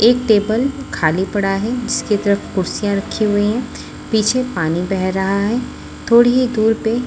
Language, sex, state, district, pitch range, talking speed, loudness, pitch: Hindi, female, Chhattisgarh, Raipur, 195-240 Hz, 170 wpm, -17 LUFS, 215 Hz